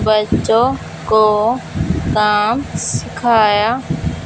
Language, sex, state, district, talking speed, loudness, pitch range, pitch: Hindi, female, Punjab, Fazilka, 55 wpm, -15 LUFS, 210-230 Hz, 215 Hz